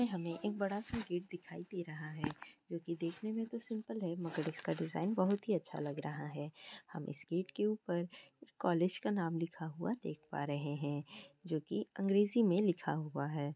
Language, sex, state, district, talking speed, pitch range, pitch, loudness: Hindi, female, Bihar, Kishanganj, 205 wpm, 155-200 Hz, 175 Hz, -39 LUFS